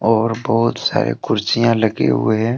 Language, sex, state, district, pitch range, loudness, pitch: Hindi, male, Jharkhand, Deoghar, 110-115 Hz, -17 LUFS, 115 Hz